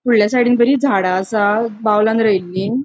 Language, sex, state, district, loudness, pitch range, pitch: Konkani, female, Goa, North and South Goa, -15 LUFS, 205-240 Hz, 220 Hz